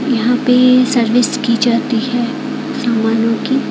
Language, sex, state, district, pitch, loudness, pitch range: Hindi, female, Odisha, Khordha, 245 Hz, -14 LUFS, 235-260 Hz